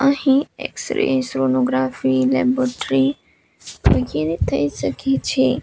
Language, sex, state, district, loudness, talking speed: Gujarati, female, Gujarat, Valsad, -19 LUFS, 85 wpm